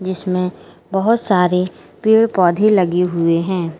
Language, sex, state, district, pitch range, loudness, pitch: Hindi, female, Uttar Pradesh, Lalitpur, 180-195 Hz, -16 LUFS, 185 Hz